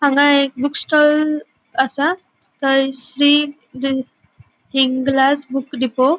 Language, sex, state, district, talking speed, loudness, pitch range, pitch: Konkani, female, Goa, North and South Goa, 85 wpm, -17 LUFS, 265-290 Hz, 275 Hz